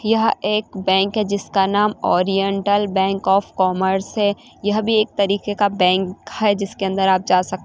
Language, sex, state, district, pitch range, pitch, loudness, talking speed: Hindi, female, Chhattisgarh, Rajnandgaon, 190-210 Hz, 200 Hz, -19 LUFS, 180 wpm